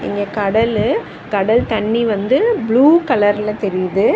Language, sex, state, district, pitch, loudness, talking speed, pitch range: Tamil, female, Tamil Nadu, Chennai, 215 Hz, -16 LUFS, 115 wpm, 205-235 Hz